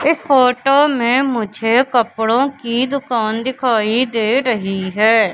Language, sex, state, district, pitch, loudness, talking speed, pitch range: Hindi, female, Madhya Pradesh, Katni, 240 Hz, -16 LUFS, 125 wpm, 225-265 Hz